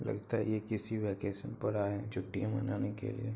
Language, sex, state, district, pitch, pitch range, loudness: Hindi, male, Uttar Pradesh, Hamirpur, 105 Hz, 100-115 Hz, -37 LUFS